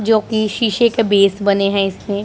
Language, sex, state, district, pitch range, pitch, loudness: Hindi, female, Punjab, Pathankot, 200-220 Hz, 205 Hz, -15 LUFS